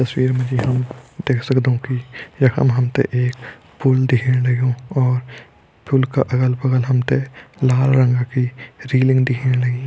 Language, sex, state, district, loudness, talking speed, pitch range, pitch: Hindi, male, Uttarakhand, Tehri Garhwal, -18 LUFS, 145 wpm, 125-130 Hz, 130 Hz